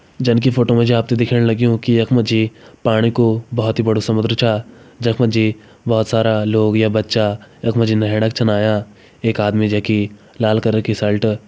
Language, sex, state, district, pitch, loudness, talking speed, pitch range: Hindi, male, Uttarakhand, Uttarkashi, 110 Hz, -16 LUFS, 200 wpm, 110-115 Hz